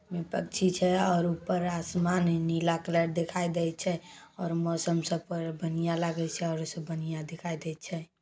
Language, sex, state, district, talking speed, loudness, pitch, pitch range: Maithili, female, Bihar, Samastipur, 175 wpm, -30 LUFS, 170 Hz, 165-175 Hz